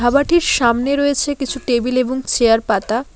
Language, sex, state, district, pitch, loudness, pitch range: Bengali, female, West Bengal, Alipurduar, 260 Hz, -16 LUFS, 235-280 Hz